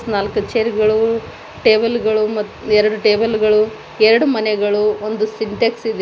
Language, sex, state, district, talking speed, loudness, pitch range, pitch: Kannada, female, Karnataka, Koppal, 140 wpm, -16 LUFS, 210-225 Hz, 215 Hz